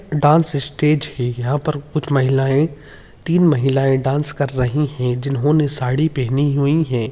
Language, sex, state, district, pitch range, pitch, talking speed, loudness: Hindi, male, Bihar, Jahanabad, 135-150 Hz, 145 Hz, 150 wpm, -17 LUFS